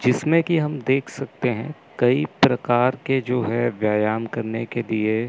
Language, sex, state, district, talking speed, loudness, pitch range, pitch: Hindi, male, Chandigarh, Chandigarh, 170 wpm, -22 LUFS, 115-135 Hz, 125 Hz